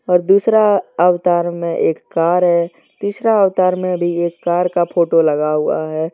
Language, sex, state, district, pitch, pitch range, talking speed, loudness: Hindi, male, Jharkhand, Deoghar, 175 Hz, 170-185 Hz, 175 wpm, -15 LUFS